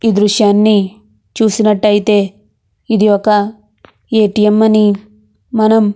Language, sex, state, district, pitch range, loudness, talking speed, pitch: Telugu, female, Andhra Pradesh, Krishna, 200-215 Hz, -12 LUFS, 80 wpm, 210 Hz